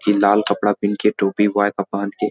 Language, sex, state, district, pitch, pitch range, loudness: Hindi, male, Bihar, Lakhisarai, 100 Hz, 100-105 Hz, -18 LUFS